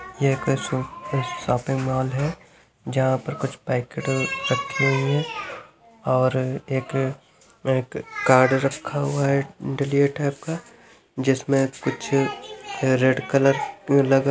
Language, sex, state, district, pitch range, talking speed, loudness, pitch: Hindi, male, Chhattisgarh, Bilaspur, 130-155 Hz, 115 wpm, -23 LUFS, 140 Hz